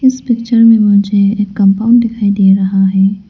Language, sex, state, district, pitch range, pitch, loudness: Hindi, female, Arunachal Pradesh, Lower Dibang Valley, 195-230 Hz, 205 Hz, -10 LUFS